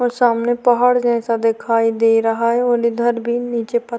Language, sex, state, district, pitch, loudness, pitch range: Hindi, female, Uttarakhand, Tehri Garhwal, 235 Hz, -17 LUFS, 230-240 Hz